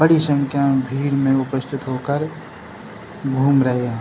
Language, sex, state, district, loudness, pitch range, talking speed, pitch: Hindi, male, Bihar, Jahanabad, -19 LUFS, 130-140 Hz, 150 wpm, 135 Hz